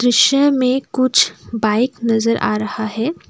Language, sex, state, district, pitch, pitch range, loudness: Hindi, female, Assam, Kamrup Metropolitan, 245 Hz, 225-255 Hz, -16 LUFS